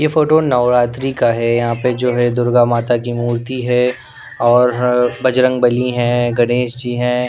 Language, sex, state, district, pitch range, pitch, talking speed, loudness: Hindi, male, Punjab, Pathankot, 120-125 Hz, 125 Hz, 170 wpm, -15 LUFS